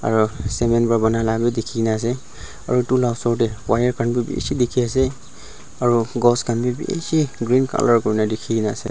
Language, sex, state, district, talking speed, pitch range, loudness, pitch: Nagamese, male, Nagaland, Dimapur, 215 wpm, 115-125 Hz, -20 LUFS, 120 Hz